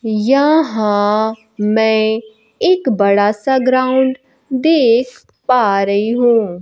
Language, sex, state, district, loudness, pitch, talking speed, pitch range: Hindi, female, Bihar, Kaimur, -14 LUFS, 225 Hz, 90 wpm, 215-260 Hz